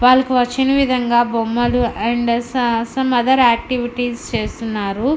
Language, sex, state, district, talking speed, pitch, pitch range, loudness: Telugu, female, Andhra Pradesh, Anantapur, 115 wpm, 240 Hz, 235-255 Hz, -17 LUFS